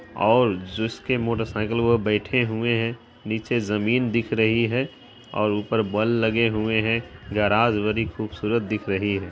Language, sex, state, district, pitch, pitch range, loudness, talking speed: Hindi, female, Bihar, Araria, 110 Hz, 105-115 Hz, -23 LUFS, 165 wpm